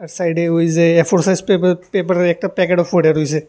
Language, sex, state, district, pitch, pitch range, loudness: Bengali, male, Tripura, West Tripura, 175 Hz, 165-185 Hz, -15 LUFS